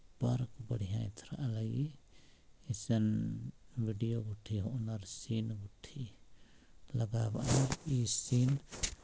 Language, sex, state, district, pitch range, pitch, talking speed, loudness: Sadri, male, Chhattisgarh, Jashpur, 110-125 Hz, 115 Hz, 105 wpm, -37 LUFS